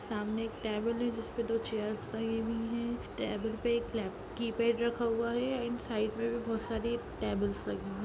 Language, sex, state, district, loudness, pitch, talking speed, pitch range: Hindi, female, Bihar, Darbhanga, -34 LUFS, 230 Hz, 195 wpm, 220-235 Hz